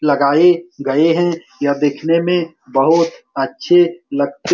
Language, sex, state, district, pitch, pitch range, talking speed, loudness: Hindi, male, Bihar, Saran, 165 Hz, 140-175 Hz, 130 wpm, -15 LUFS